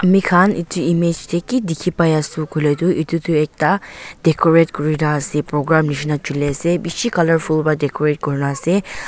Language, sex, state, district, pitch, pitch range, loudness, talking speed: Nagamese, female, Nagaland, Dimapur, 160 Hz, 150-170 Hz, -17 LUFS, 150 wpm